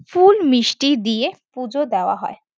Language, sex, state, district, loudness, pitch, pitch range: Bengali, female, West Bengal, Kolkata, -17 LUFS, 280 Hz, 250-330 Hz